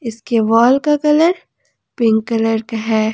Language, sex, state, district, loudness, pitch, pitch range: Hindi, female, Jharkhand, Ranchi, -15 LUFS, 230 Hz, 225-275 Hz